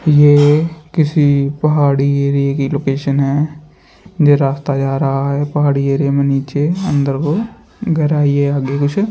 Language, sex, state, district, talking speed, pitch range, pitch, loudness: Hindi, male, Uttar Pradesh, Muzaffarnagar, 145 wpm, 140-150 Hz, 145 Hz, -14 LUFS